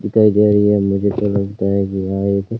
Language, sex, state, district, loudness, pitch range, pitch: Hindi, male, Rajasthan, Bikaner, -16 LUFS, 100-105 Hz, 100 Hz